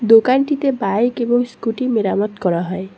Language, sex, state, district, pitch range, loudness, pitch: Bengali, female, West Bengal, Cooch Behar, 195-245 Hz, -17 LUFS, 225 Hz